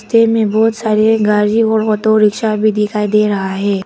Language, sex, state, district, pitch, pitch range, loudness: Hindi, female, Arunachal Pradesh, Papum Pare, 215 Hz, 210-220 Hz, -13 LUFS